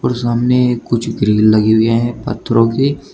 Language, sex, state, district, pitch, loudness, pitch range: Hindi, male, Uttar Pradesh, Shamli, 120 Hz, -14 LUFS, 110-125 Hz